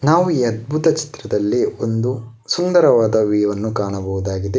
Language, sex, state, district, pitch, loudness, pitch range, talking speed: Kannada, male, Karnataka, Bangalore, 115 Hz, -18 LUFS, 105-150 Hz, 120 wpm